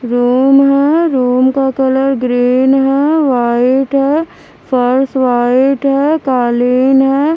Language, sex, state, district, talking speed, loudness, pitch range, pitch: Hindi, female, Haryana, Charkhi Dadri, 115 wpm, -11 LUFS, 250-275 Hz, 265 Hz